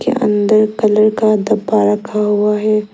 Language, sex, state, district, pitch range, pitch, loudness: Hindi, female, Arunachal Pradesh, Lower Dibang Valley, 210-215 Hz, 215 Hz, -14 LUFS